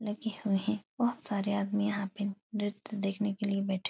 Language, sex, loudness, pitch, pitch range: Hindi, female, -33 LUFS, 205 Hz, 200-210 Hz